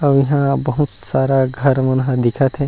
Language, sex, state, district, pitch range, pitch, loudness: Chhattisgarhi, male, Chhattisgarh, Rajnandgaon, 130-140 Hz, 135 Hz, -16 LUFS